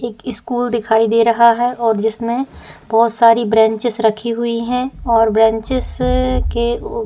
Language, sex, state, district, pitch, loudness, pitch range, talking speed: Hindi, female, Uttar Pradesh, Etah, 230 Hz, -15 LUFS, 225-240 Hz, 160 wpm